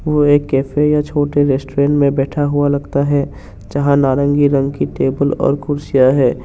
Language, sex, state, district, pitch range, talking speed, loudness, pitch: Hindi, male, Assam, Kamrup Metropolitan, 135-145 Hz, 165 wpm, -15 LUFS, 140 Hz